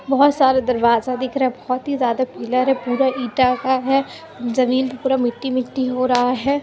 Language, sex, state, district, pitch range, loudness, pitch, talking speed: Hindi, female, Bihar, Muzaffarpur, 250-265 Hz, -19 LUFS, 255 Hz, 210 wpm